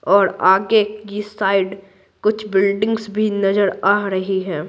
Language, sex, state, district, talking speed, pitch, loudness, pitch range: Hindi, female, Bihar, Patna, 140 wpm, 200 Hz, -18 LUFS, 195-210 Hz